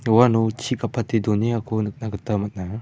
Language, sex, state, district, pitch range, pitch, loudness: Garo, male, Meghalaya, West Garo Hills, 105-115 Hz, 110 Hz, -22 LUFS